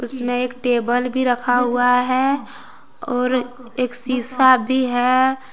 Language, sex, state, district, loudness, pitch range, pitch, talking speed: Hindi, female, Jharkhand, Deoghar, -18 LUFS, 245-255 Hz, 250 Hz, 140 wpm